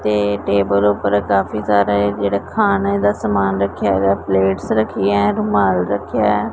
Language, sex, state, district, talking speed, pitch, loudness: Punjabi, male, Punjab, Pathankot, 165 wpm, 100 Hz, -17 LUFS